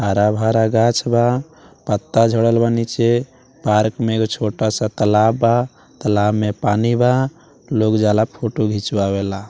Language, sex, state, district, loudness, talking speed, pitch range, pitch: Bhojpuri, male, Bihar, Muzaffarpur, -17 LUFS, 145 wpm, 105-120 Hz, 115 Hz